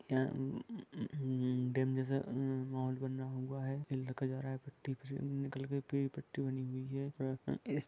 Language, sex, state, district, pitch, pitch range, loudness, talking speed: Hindi, male, Jharkhand, Sahebganj, 135 Hz, 130-135 Hz, -40 LUFS, 100 wpm